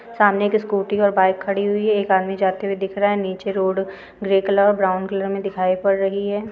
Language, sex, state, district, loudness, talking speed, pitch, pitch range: Hindi, female, Andhra Pradesh, Guntur, -20 LUFS, 250 wpm, 195 Hz, 195-205 Hz